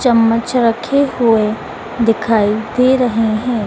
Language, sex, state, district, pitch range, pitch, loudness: Hindi, female, Madhya Pradesh, Dhar, 225-245 Hz, 230 Hz, -14 LUFS